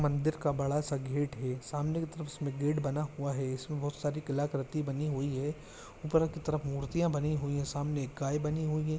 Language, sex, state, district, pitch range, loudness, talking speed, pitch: Hindi, male, Andhra Pradesh, Visakhapatnam, 140-155 Hz, -34 LUFS, 225 wpm, 145 Hz